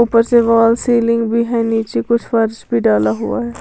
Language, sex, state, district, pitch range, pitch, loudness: Hindi, female, Bihar, Kaimur, 225-235 Hz, 230 Hz, -15 LUFS